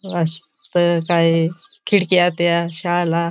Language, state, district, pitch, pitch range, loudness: Bhili, Maharashtra, Dhule, 175 Hz, 170-180 Hz, -18 LUFS